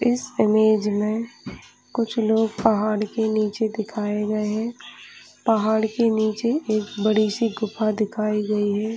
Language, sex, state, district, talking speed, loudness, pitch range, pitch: Hindi, female, Chhattisgarh, Bastar, 140 wpm, -22 LUFS, 215-225 Hz, 215 Hz